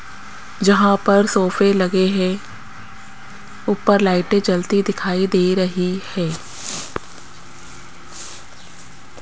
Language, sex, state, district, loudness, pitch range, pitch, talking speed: Hindi, female, Rajasthan, Jaipur, -18 LUFS, 185-200 Hz, 190 Hz, 80 wpm